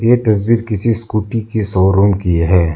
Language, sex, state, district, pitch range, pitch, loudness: Hindi, male, Arunachal Pradesh, Lower Dibang Valley, 95-115 Hz, 105 Hz, -14 LUFS